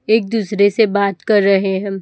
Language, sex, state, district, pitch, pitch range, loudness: Hindi, female, Chhattisgarh, Raipur, 200 Hz, 195-220 Hz, -15 LUFS